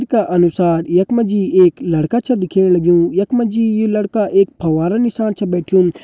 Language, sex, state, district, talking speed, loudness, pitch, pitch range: Hindi, male, Uttarakhand, Uttarkashi, 210 wpm, -15 LUFS, 195 Hz, 175-220 Hz